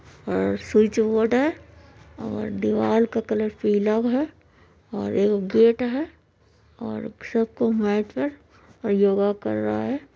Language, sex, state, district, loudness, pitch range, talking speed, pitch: Maithili, female, Bihar, Supaul, -23 LUFS, 200-235 Hz, 135 wpm, 220 Hz